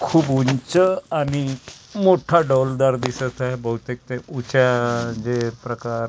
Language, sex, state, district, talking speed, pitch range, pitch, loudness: Marathi, male, Maharashtra, Gondia, 150 wpm, 120-140 Hz, 130 Hz, -21 LUFS